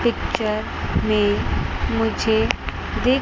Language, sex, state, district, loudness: Hindi, female, Chandigarh, Chandigarh, -22 LUFS